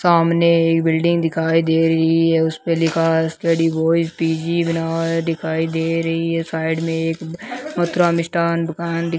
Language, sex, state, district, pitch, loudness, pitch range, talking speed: Hindi, male, Rajasthan, Bikaner, 165 Hz, -18 LUFS, 165-170 Hz, 175 wpm